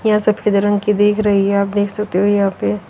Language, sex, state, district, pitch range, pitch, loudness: Hindi, female, Haryana, Rohtak, 200-210 Hz, 205 Hz, -16 LUFS